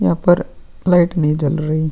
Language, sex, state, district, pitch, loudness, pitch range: Hindi, male, Bihar, Vaishali, 160 Hz, -16 LUFS, 155-175 Hz